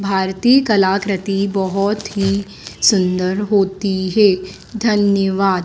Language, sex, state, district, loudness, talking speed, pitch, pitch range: Hindi, female, Madhya Pradesh, Dhar, -16 LUFS, 85 wpm, 195 Hz, 190-205 Hz